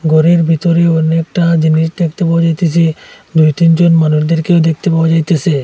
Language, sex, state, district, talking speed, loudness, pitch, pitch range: Bengali, male, Assam, Hailakandi, 125 wpm, -11 LUFS, 165 Hz, 160-170 Hz